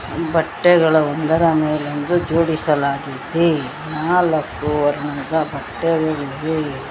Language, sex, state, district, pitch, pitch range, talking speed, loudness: Kannada, female, Karnataka, Bangalore, 155 Hz, 145-165 Hz, 60 wpm, -18 LUFS